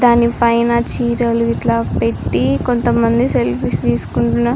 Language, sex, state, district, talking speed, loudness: Telugu, female, Andhra Pradesh, Srikakulam, 120 wpm, -15 LUFS